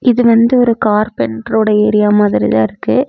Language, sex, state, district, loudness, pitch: Tamil, female, Tamil Nadu, Namakkal, -12 LUFS, 210 Hz